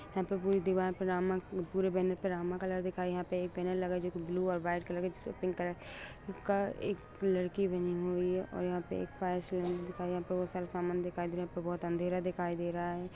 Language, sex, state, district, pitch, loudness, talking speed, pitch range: Hindi, female, Bihar, Jahanabad, 180 Hz, -36 LUFS, 265 wpm, 175-185 Hz